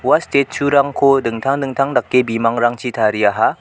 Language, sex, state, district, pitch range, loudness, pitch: Garo, male, Meghalaya, West Garo Hills, 115-140 Hz, -16 LUFS, 125 Hz